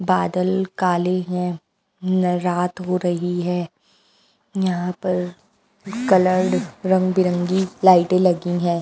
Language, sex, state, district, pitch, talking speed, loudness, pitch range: Hindi, female, Bihar, West Champaran, 185 Hz, 100 wpm, -20 LUFS, 180-190 Hz